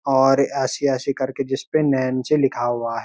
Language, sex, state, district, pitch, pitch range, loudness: Hindi, male, Uttarakhand, Uttarkashi, 135 Hz, 130-140 Hz, -20 LUFS